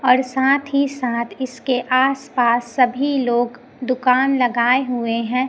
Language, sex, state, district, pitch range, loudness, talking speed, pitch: Hindi, female, Chhattisgarh, Raipur, 245-265 Hz, -18 LUFS, 140 wpm, 255 Hz